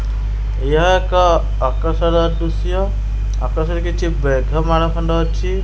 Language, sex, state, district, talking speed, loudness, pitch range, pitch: Odia, male, Odisha, Khordha, 105 wpm, -18 LUFS, 100-165 Hz, 140 Hz